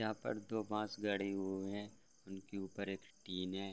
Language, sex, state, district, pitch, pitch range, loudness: Hindi, male, Bihar, Gopalganj, 100 Hz, 95-105 Hz, -43 LUFS